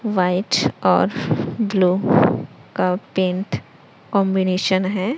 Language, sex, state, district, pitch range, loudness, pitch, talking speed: Hindi, male, Chhattisgarh, Raipur, 180-195 Hz, -19 LUFS, 185 Hz, 80 wpm